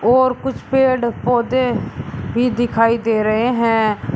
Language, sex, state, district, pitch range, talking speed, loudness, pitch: Hindi, male, Uttar Pradesh, Shamli, 230-255 Hz, 130 wpm, -17 LUFS, 240 Hz